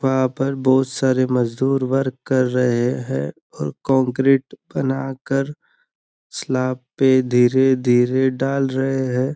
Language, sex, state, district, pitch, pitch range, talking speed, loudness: Hindi, male, Maharashtra, Nagpur, 130 Hz, 125-135 Hz, 130 wpm, -19 LUFS